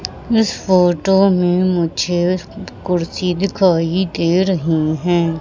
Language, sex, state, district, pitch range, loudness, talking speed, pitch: Hindi, female, Madhya Pradesh, Katni, 170-185 Hz, -16 LUFS, 100 wpm, 180 Hz